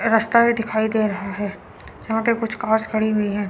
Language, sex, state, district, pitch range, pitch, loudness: Hindi, female, Chandigarh, Chandigarh, 210-225 Hz, 220 Hz, -21 LUFS